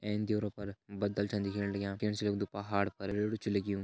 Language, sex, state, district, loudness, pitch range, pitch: Hindi, male, Uttarakhand, Uttarkashi, -36 LUFS, 100-105 Hz, 100 Hz